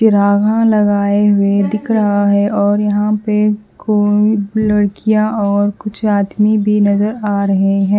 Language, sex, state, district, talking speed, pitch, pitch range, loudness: Hindi, female, Haryana, Charkhi Dadri, 135 wpm, 205 Hz, 200-215 Hz, -14 LUFS